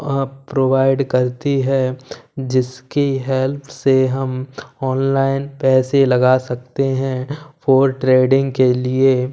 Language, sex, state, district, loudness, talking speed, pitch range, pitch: Hindi, male, Punjab, Kapurthala, -17 LUFS, 110 wpm, 130-135 Hz, 135 Hz